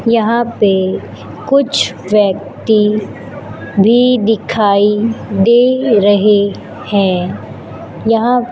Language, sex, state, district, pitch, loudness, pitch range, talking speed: Hindi, female, Chhattisgarh, Raipur, 210 Hz, -12 LUFS, 195-230 Hz, 70 wpm